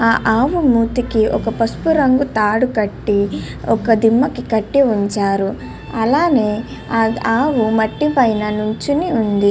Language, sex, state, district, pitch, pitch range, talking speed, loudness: Telugu, female, Andhra Pradesh, Krishna, 225 Hz, 215-260 Hz, 115 wpm, -16 LUFS